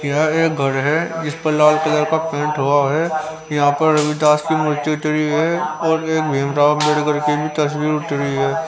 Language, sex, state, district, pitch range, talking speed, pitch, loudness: Hindi, male, Haryana, Rohtak, 150-155 Hz, 185 wpm, 150 Hz, -17 LUFS